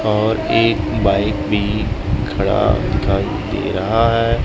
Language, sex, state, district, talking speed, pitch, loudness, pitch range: Hindi, male, Punjab, Kapurthala, 120 wpm, 105 Hz, -17 LUFS, 100-110 Hz